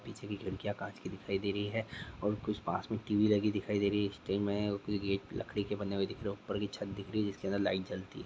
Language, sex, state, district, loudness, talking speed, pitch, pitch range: Hindi, male, Chhattisgarh, Jashpur, -36 LUFS, 275 wpm, 100 Hz, 100-105 Hz